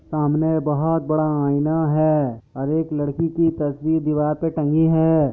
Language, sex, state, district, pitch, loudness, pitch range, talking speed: Hindi, male, Bihar, Kishanganj, 155 Hz, -20 LUFS, 150-160 Hz, 160 wpm